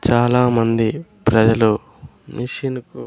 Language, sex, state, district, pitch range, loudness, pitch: Telugu, male, Andhra Pradesh, Sri Satya Sai, 110-125 Hz, -18 LUFS, 115 Hz